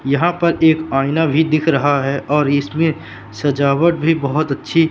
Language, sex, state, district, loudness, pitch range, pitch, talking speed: Hindi, male, Madhya Pradesh, Katni, -16 LUFS, 140-160 Hz, 150 Hz, 170 wpm